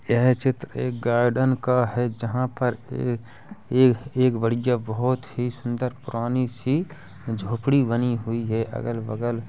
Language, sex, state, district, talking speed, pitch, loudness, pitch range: Hindi, female, Uttar Pradesh, Jalaun, 145 wpm, 120 Hz, -24 LUFS, 115-130 Hz